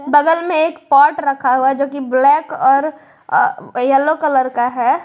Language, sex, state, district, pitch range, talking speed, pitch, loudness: Hindi, female, Jharkhand, Garhwa, 265-310 Hz, 165 wpm, 280 Hz, -15 LUFS